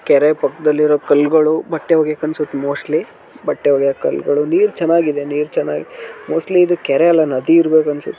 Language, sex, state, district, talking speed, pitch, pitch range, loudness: Kannada, male, Karnataka, Dharwad, 170 wpm, 155 Hz, 150-170 Hz, -15 LUFS